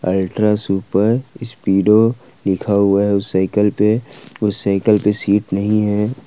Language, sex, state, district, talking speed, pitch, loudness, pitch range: Hindi, male, Jharkhand, Ranchi, 145 wpm, 105 Hz, -16 LUFS, 100-110 Hz